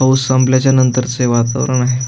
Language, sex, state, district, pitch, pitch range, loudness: Marathi, male, Maharashtra, Aurangabad, 130 Hz, 125-130 Hz, -13 LUFS